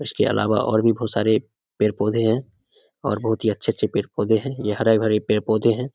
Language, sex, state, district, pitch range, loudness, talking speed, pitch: Hindi, male, Bihar, Samastipur, 105-115 Hz, -21 LUFS, 190 wpm, 110 Hz